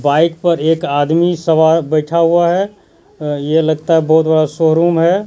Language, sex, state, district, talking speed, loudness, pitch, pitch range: Hindi, male, Bihar, Katihar, 170 wpm, -13 LUFS, 160 Hz, 155-170 Hz